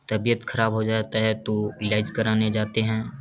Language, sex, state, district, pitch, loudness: Hindi, male, Bihar, Samastipur, 110 Hz, -24 LUFS